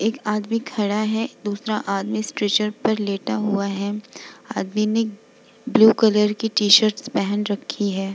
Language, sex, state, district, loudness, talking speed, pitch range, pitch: Hindi, female, Bihar, Vaishali, -21 LUFS, 160 wpm, 205-220 Hz, 215 Hz